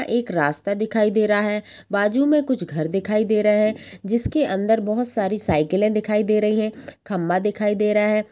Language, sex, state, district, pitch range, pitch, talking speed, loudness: Hindi, female, Bihar, Sitamarhi, 200-220 Hz, 210 Hz, 200 wpm, -21 LUFS